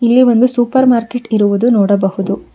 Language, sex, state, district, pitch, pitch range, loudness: Kannada, female, Karnataka, Bangalore, 235 Hz, 200-245 Hz, -12 LUFS